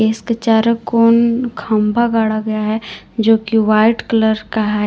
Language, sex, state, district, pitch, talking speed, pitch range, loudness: Hindi, female, Jharkhand, Palamu, 225 Hz, 160 wpm, 215-230 Hz, -15 LUFS